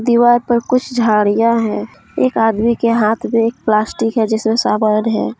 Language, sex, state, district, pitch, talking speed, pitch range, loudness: Hindi, female, Jharkhand, Deoghar, 225 Hz, 180 wpm, 215-235 Hz, -15 LUFS